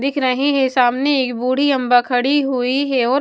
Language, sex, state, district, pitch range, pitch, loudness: Hindi, female, Punjab, Kapurthala, 250-275 Hz, 260 Hz, -16 LUFS